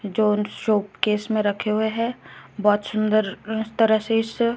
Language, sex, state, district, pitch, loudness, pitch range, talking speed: Hindi, female, Chhattisgarh, Raipur, 215 Hz, -22 LUFS, 210-225 Hz, 145 wpm